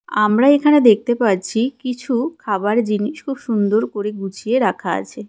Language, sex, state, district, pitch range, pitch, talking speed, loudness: Bengali, female, West Bengal, Cooch Behar, 210-255 Hz, 230 Hz, 145 wpm, -18 LUFS